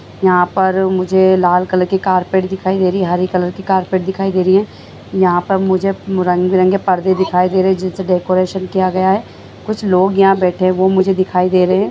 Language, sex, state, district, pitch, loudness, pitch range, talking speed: Hindi, female, Bihar, Darbhanga, 185 Hz, -14 LUFS, 185-190 Hz, 210 wpm